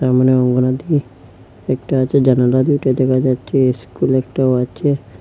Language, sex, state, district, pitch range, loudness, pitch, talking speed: Bengali, male, Assam, Hailakandi, 125-130 Hz, -16 LUFS, 130 Hz, 140 wpm